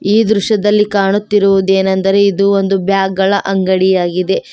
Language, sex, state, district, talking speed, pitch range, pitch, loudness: Kannada, female, Karnataka, Koppal, 120 wpm, 190-200 Hz, 195 Hz, -12 LUFS